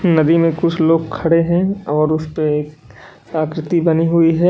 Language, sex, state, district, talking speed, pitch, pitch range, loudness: Hindi, male, Uttar Pradesh, Lalitpur, 175 wpm, 165 Hz, 155-170 Hz, -16 LUFS